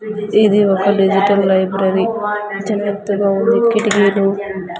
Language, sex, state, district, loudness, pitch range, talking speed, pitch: Telugu, female, Andhra Pradesh, Anantapur, -15 LUFS, 195-210 Hz, 110 wpm, 200 Hz